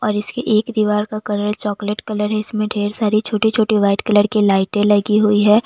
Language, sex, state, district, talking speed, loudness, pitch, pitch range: Hindi, female, Bihar, West Champaran, 210 wpm, -17 LUFS, 210 Hz, 205-215 Hz